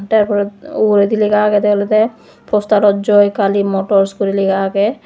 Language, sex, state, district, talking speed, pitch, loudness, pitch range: Chakma, female, Tripura, West Tripura, 155 wpm, 205 Hz, -14 LUFS, 200-210 Hz